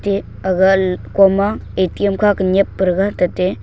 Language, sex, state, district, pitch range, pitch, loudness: Wancho, male, Arunachal Pradesh, Longding, 185-200 Hz, 190 Hz, -16 LUFS